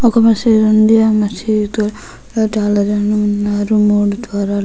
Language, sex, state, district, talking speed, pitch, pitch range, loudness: Telugu, female, Andhra Pradesh, Guntur, 105 wpm, 210 Hz, 205-220 Hz, -14 LUFS